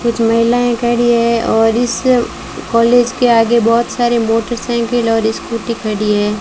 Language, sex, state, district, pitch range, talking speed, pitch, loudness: Hindi, female, Rajasthan, Bikaner, 225-240 Hz, 150 wpm, 235 Hz, -13 LUFS